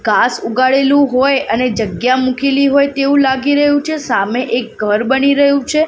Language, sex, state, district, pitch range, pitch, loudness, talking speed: Gujarati, female, Gujarat, Gandhinagar, 250-280 Hz, 270 Hz, -13 LUFS, 175 wpm